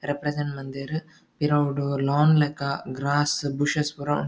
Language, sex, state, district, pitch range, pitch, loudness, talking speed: Tulu, male, Karnataka, Dakshina Kannada, 140-150 Hz, 145 Hz, -25 LUFS, 125 wpm